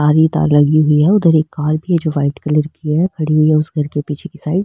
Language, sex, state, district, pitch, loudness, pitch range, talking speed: Marwari, female, Rajasthan, Nagaur, 155 Hz, -15 LUFS, 150-160 Hz, 335 wpm